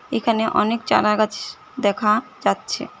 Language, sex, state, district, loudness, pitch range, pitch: Bengali, female, West Bengal, Cooch Behar, -20 LUFS, 210-235 Hz, 220 Hz